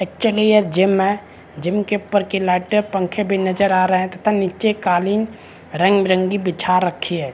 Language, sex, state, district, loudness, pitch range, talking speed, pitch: Hindi, male, Chhattisgarh, Rajnandgaon, -18 LUFS, 185-205 Hz, 190 wpm, 195 Hz